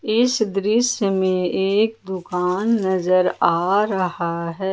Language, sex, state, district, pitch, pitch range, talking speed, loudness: Hindi, female, Jharkhand, Ranchi, 190 Hz, 180-215 Hz, 115 wpm, -20 LUFS